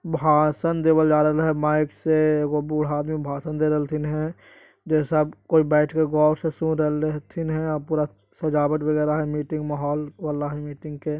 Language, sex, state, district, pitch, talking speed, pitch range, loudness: Magahi, male, Bihar, Jahanabad, 155 Hz, 200 wpm, 150-155 Hz, -23 LUFS